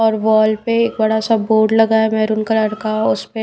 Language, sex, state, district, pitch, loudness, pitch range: Hindi, female, Haryana, Rohtak, 220 Hz, -15 LUFS, 215-225 Hz